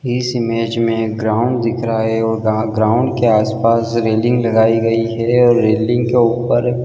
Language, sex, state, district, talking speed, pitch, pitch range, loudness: Hindi, male, Chhattisgarh, Bilaspur, 195 wpm, 115 Hz, 110-120 Hz, -15 LUFS